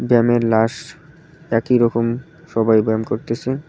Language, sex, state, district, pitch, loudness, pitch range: Bengali, male, West Bengal, Cooch Behar, 120 Hz, -18 LUFS, 115-150 Hz